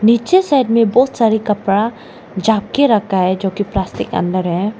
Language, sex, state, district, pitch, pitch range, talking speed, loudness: Hindi, female, Arunachal Pradesh, Lower Dibang Valley, 215 Hz, 195-230 Hz, 190 wpm, -15 LUFS